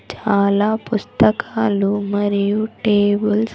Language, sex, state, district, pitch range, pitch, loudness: Telugu, female, Andhra Pradesh, Sri Satya Sai, 205-215 Hz, 205 Hz, -18 LUFS